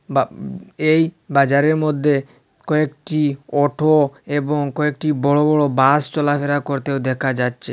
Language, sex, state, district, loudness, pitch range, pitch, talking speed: Bengali, male, Assam, Hailakandi, -18 LUFS, 140-150 Hz, 145 Hz, 115 wpm